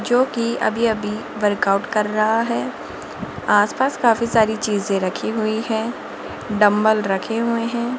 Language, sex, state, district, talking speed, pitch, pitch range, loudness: Hindi, female, Rajasthan, Jaipur, 140 wpm, 220 Hz, 210-235 Hz, -20 LUFS